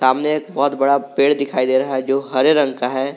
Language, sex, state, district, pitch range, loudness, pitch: Hindi, male, Jharkhand, Garhwa, 130-140 Hz, -17 LUFS, 135 Hz